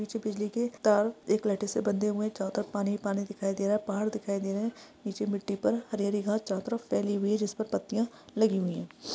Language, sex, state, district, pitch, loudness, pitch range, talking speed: Hindi, female, Maharashtra, Pune, 210 Hz, -31 LUFS, 200-220 Hz, 255 wpm